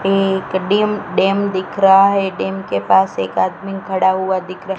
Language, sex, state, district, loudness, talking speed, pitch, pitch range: Hindi, female, Gujarat, Gandhinagar, -16 LUFS, 190 wpm, 190 Hz, 185-195 Hz